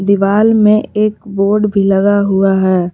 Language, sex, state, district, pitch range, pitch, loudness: Hindi, female, Jharkhand, Palamu, 195-210 Hz, 200 Hz, -12 LUFS